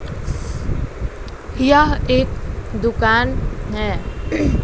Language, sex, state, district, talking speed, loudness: Hindi, female, Bihar, West Champaran, 50 wpm, -19 LUFS